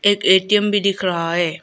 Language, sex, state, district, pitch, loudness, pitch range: Hindi, female, Arunachal Pradesh, Lower Dibang Valley, 190 Hz, -17 LUFS, 175-205 Hz